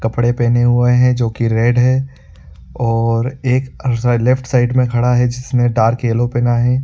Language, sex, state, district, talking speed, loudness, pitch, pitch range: Sadri, male, Chhattisgarh, Jashpur, 175 wpm, -15 LUFS, 120 Hz, 115-125 Hz